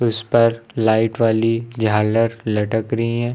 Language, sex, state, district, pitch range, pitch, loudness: Hindi, male, Uttar Pradesh, Lucknow, 110-115 Hz, 115 Hz, -18 LUFS